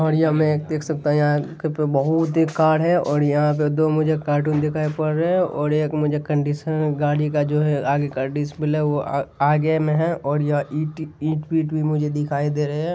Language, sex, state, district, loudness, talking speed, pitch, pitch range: Hindi, male, Bihar, Saharsa, -21 LUFS, 220 wpm, 150 Hz, 145-155 Hz